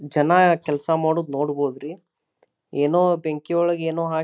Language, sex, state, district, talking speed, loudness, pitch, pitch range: Kannada, male, Karnataka, Dharwad, 140 wpm, -21 LUFS, 160 Hz, 145-170 Hz